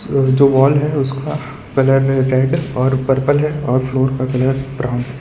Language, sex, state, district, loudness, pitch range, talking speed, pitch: Hindi, male, Gujarat, Valsad, -16 LUFS, 130-140 Hz, 170 wpm, 135 Hz